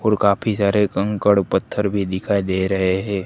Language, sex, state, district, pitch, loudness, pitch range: Hindi, male, Gujarat, Gandhinagar, 100 Hz, -19 LUFS, 95-105 Hz